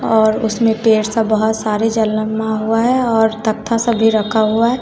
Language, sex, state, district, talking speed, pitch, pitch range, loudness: Hindi, female, Bihar, West Champaran, 200 wpm, 220 Hz, 220-225 Hz, -15 LUFS